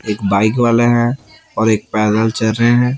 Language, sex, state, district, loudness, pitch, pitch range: Hindi, male, Chhattisgarh, Raipur, -14 LUFS, 110 Hz, 110-120 Hz